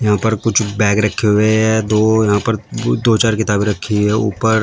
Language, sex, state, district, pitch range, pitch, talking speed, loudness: Hindi, male, Uttar Pradesh, Shamli, 105-110 Hz, 110 Hz, 205 wpm, -15 LUFS